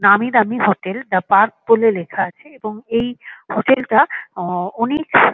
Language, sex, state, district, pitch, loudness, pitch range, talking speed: Bengali, female, West Bengal, Kolkata, 220 Hz, -17 LUFS, 195-240 Hz, 145 wpm